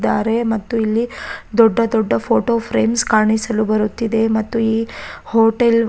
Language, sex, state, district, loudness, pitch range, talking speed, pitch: Kannada, female, Karnataka, Raichur, -17 LUFS, 220-230 Hz, 130 wpm, 225 Hz